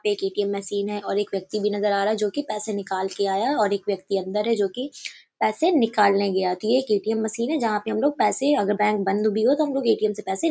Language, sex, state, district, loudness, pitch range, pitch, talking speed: Hindi, female, Uttar Pradesh, Hamirpur, -23 LUFS, 200-225 Hz, 210 Hz, 280 wpm